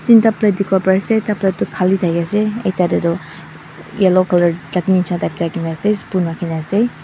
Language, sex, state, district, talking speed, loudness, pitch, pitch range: Nagamese, female, Mizoram, Aizawl, 215 wpm, -16 LUFS, 185 Hz, 170-205 Hz